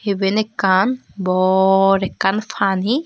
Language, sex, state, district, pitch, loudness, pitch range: Chakma, female, Tripura, Dhalai, 195 Hz, -17 LUFS, 190-210 Hz